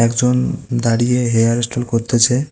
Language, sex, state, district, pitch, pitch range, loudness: Bengali, male, West Bengal, Cooch Behar, 120 Hz, 115-125 Hz, -16 LUFS